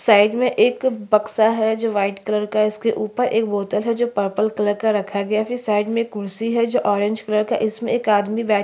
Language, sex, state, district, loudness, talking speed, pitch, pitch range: Hindi, female, Chhattisgarh, Sukma, -20 LUFS, 255 wpm, 215 Hz, 210-230 Hz